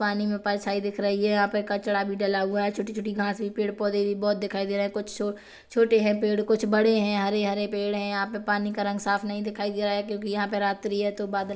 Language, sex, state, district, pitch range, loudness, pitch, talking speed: Hindi, female, Chhattisgarh, Kabirdham, 200-210 Hz, -26 LUFS, 205 Hz, 275 wpm